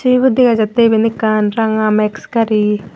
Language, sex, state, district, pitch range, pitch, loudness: Chakma, female, Tripura, Unakoti, 215-230 Hz, 220 Hz, -14 LUFS